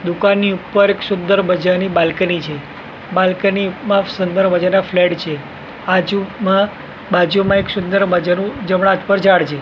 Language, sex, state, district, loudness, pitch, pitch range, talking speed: Gujarati, male, Gujarat, Gandhinagar, -15 LUFS, 190 Hz, 180-200 Hz, 150 wpm